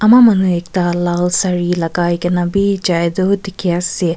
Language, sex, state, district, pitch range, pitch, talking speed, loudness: Nagamese, female, Nagaland, Kohima, 175-195 Hz, 180 Hz, 175 wpm, -15 LUFS